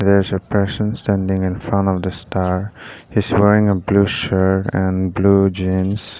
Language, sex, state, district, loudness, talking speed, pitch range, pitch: English, male, Nagaland, Dimapur, -17 LUFS, 165 wpm, 95-100 Hz, 95 Hz